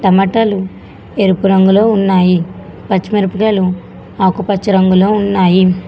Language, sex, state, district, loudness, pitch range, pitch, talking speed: Telugu, female, Telangana, Hyderabad, -12 LUFS, 185-205 Hz, 190 Hz, 90 wpm